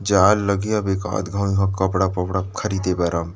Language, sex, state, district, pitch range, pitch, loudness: Chhattisgarhi, male, Chhattisgarh, Rajnandgaon, 90-100 Hz, 95 Hz, -21 LUFS